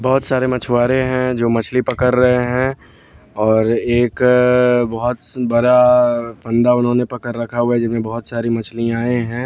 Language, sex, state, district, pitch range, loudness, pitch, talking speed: Hindi, male, Bihar, West Champaran, 115-125 Hz, -16 LUFS, 120 Hz, 150 wpm